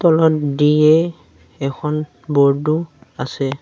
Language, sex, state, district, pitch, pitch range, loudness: Assamese, male, Assam, Sonitpur, 150 Hz, 140-155 Hz, -17 LUFS